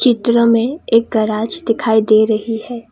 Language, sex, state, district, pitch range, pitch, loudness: Hindi, female, Assam, Kamrup Metropolitan, 220-235 Hz, 230 Hz, -15 LUFS